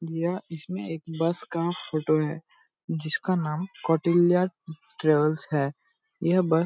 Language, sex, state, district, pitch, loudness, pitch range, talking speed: Hindi, male, Bihar, Purnia, 165 Hz, -26 LUFS, 155-180 Hz, 135 wpm